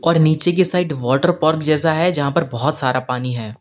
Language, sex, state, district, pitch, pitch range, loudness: Hindi, male, Uttar Pradesh, Lalitpur, 155 Hz, 130-170 Hz, -17 LUFS